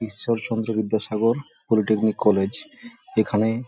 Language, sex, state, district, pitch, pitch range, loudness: Bengali, male, West Bengal, Jhargram, 110 Hz, 110-120 Hz, -23 LUFS